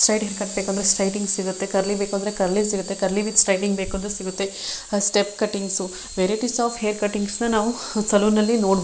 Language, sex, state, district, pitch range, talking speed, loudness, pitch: Kannada, female, Karnataka, Shimoga, 195-215 Hz, 170 wpm, -22 LUFS, 205 Hz